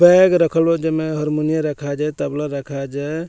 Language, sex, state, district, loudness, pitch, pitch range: Bhojpuri, male, Bihar, Muzaffarpur, -19 LUFS, 155 Hz, 145-165 Hz